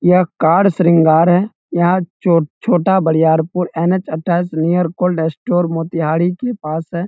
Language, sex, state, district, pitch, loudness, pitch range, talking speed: Hindi, male, Bihar, East Champaran, 170 Hz, -15 LUFS, 160-180 Hz, 150 wpm